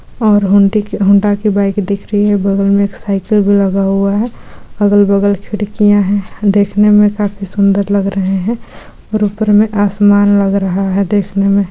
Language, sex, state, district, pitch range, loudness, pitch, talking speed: Hindi, female, Bihar, Darbhanga, 200-205 Hz, -12 LUFS, 200 Hz, 185 wpm